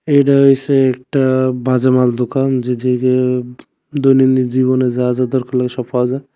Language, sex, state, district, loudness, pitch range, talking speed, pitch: Bengali, male, Tripura, West Tripura, -14 LUFS, 125-135 Hz, 150 wpm, 130 Hz